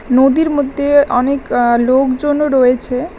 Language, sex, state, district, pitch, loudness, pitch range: Bengali, female, West Bengal, Alipurduar, 265 Hz, -13 LUFS, 250-285 Hz